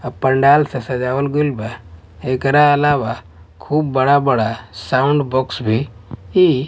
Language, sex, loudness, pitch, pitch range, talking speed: Bhojpuri, male, -16 LUFS, 130 Hz, 110-145 Hz, 125 wpm